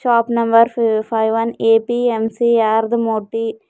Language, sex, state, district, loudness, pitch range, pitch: Kannada, female, Karnataka, Bidar, -16 LUFS, 225-235 Hz, 225 Hz